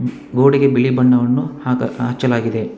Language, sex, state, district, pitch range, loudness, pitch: Kannada, male, Karnataka, Bangalore, 125-130 Hz, -16 LUFS, 125 Hz